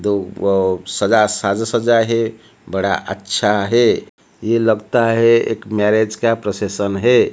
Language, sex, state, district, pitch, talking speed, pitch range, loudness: Hindi, male, Odisha, Malkangiri, 110 Hz, 140 wpm, 100-115 Hz, -16 LUFS